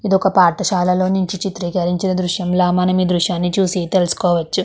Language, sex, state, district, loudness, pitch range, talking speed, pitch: Telugu, female, Andhra Pradesh, Krishna, -17 LUFS, 180-190 Hz, 115 wpm, 185 Hz